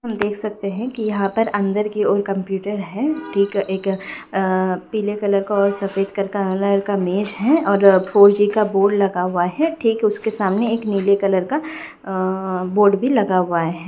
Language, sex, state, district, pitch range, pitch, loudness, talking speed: Hindi, female, Bihar, Bhagalpur, 195-215 Hz, 200 Hz, -19 LUFS, 190 wpm